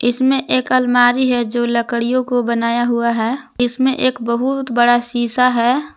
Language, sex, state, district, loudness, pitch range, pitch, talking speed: Hindi, female, Jharkhand, Garhwa, -16 LUFS, 235-255 Hz, 245 Hz, 160 wpm